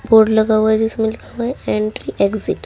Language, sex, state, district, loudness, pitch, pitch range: Hindi, female, Delhi, New Delhi, -17 LUFS, 220 Hz, 215-225 Hz